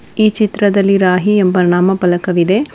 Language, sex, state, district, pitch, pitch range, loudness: Kannada, female, Karnataka, Bangalore, 190 Hz, 180-205 Hz, -12 LUFS